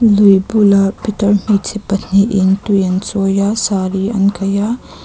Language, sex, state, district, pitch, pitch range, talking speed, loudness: Mizo, female, Mizoram, Aizawl, 200 Hz, 195-210 Hz, 165 wpm, -14 LUFS